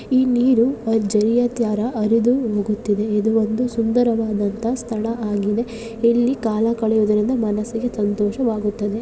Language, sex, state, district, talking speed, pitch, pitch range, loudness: Kannada, female, Karnataka, Chamarajanagar, 105 wpm, 225 Hz, 210-235 Hz, -20 LUFS